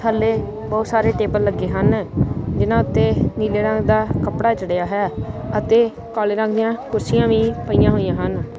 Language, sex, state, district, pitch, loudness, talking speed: Punjabi, female, Punjab, Kapurthala, 190 Hz, -19 LUFS, 160 wpm